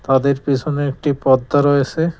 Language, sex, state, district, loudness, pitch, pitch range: Bengali, male, West Bengal, Cooch Behar, -17 LUFS, 140 Hz, 135-145 Hz